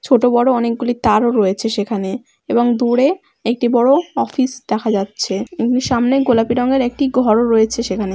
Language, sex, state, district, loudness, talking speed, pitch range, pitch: Bengali, female, West Bengal, Malda, -16 LUFS, 155 wpm, 220-255 Hz, 240 Hz